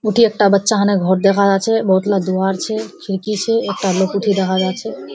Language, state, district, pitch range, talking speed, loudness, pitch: Surjapuri, Bihar, Kishanganj, 190-215 Hz, 230 wpm, -16 LUFS, 200 Hz